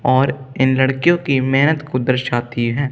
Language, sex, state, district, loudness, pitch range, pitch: Hindi, male, Punjab, Kapurthala, -17 LUFS, 130-140 Hz, 130 Hz